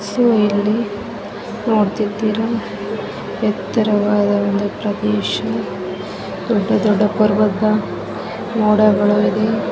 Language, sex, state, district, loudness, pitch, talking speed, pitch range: Kannada, female, Karnataka, Gulbarga, -18 LUFS, 210 Hz, 70 wpm, 205-215 Hz